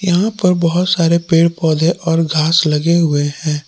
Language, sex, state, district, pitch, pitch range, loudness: Hindi, male, Jharkhand, Palamu, 165 Hz, 155-175 Hz, -14 LUFS